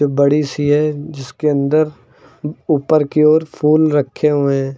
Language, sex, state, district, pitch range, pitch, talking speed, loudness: Hindi, male, Uttar Pradesh, Lucknow, 140-155 Hz, 150 Hz, 150 wpm, -15 LUFS